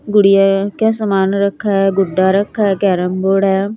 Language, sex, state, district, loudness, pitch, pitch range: Hindi, female, Bihar, West Champaran, -14 LUFS, 195 Hz, 195-200 Hz